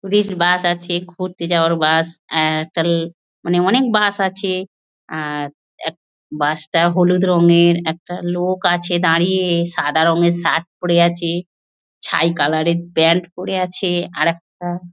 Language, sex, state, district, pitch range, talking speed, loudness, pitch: Bengali, female, West Bengal, North 24 Parganas, 165-180 Hz, 145 wpm, -17 LUFS, 175 Hz